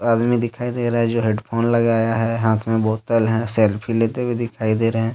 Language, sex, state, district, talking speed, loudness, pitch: Hindi, male, Jharkhand, Deoghar, 245 wpm, -19 LUFS, 115 Hz